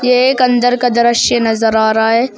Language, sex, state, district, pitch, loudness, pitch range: Hindi, male, Uttar Pradesh, Shamli, 240 Hz, -12 LUFS, 225-250 Hz